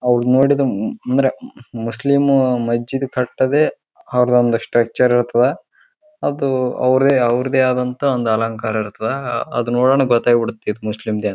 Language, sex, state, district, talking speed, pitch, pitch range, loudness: Kannada, male, Karnataka, Raichur, 125 wpm, 125 Hz, 115-135 Hz, -17 LUFS